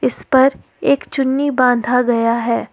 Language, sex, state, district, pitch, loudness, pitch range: Hindi, female, Jharkhand, Ranchi, 250 Hz, -16 LUFS, 235-270 Hz